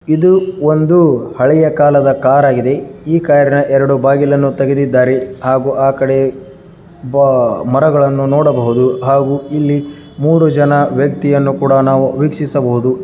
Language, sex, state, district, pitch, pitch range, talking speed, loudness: Kannada, male, Karnataka, Dharwad, 140 Hz, 135-150 Hz, 110 wpm, -12 LUFS